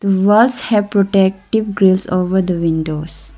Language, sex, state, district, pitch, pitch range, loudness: English, female, Arunachal Pradesh, Lower Dibang Valley, 195 Hz, 180-205 Hz, -15 LUFS